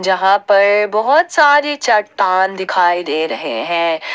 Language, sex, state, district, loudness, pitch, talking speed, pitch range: Hindi, female, Jharkhand, Ranchi, -14 LUFS, 200 Hz, 130 wpm, 185-215 Hz